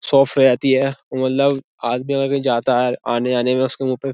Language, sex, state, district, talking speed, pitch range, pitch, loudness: Hindi, male, Uttar Pradesh, Jyotiba Phule Nagar, 260 wpm, 125-135 Hz, 130 Hz, -18 LUFS